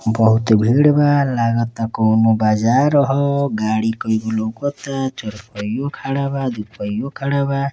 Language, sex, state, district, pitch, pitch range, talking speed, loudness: Bhojpuri, male, Uttar Pradesh, Deoria, 115 Hz, 110-140 Hz, 125 wpm, -18 LUFS